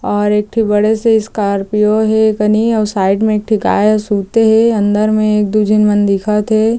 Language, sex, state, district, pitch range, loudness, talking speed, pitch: Chhattisgarhi, female, Chhattisgarh, Jashpur, 210-220 Hz, -13 LUFS, 220 wpm, 215 Hz